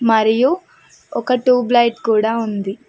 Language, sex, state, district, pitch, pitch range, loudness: Telugu, female, Telangana, Mahabubabad, 235 Hz, 220-250 Hz, -16 LUFS